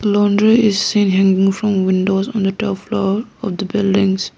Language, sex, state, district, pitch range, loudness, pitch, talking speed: English, female, Arunachal Pradesh, Lower Dibang Valley, 195-210 Hz, -16 LUFS, 200 Hz, 180 wpm